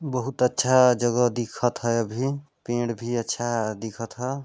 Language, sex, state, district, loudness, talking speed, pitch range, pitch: Hindi, male, Chhattisgarh, Balrampur, -24 LUFS, 150 wpm, 115-130 Hz, 120 Hz